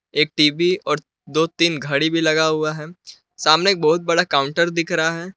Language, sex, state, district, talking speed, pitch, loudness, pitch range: Hindi, male, Jharkhand, Palamu, 200 wpm, 160 Hz, -18 LUFS, 150-170 Hz